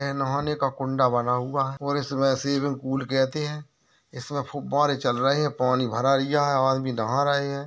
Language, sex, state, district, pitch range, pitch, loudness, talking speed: Hindi, male, Uttar Pradesh, Jyotiba Phule Nagar, 130-140 Hz, 135 Hz, -25 LUFS, 205 wpm